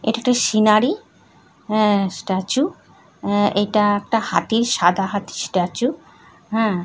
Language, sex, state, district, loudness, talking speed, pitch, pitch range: Bengali, female, West Bengal, North 24 Parganas, -19 LUFS, 105 wpm, 210 Hz, 195-225 Hz